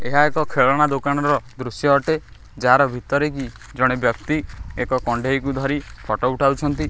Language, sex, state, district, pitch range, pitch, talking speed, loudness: Odia, male, Odisha, Khordha, 125-145 Hz, 135 Hz, 140 wpm, -20 LUFS